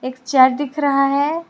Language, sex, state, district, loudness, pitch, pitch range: Hindi, female, Tripura, West Tripura, -17 LUFS, 275 Hz, 260-290 Hz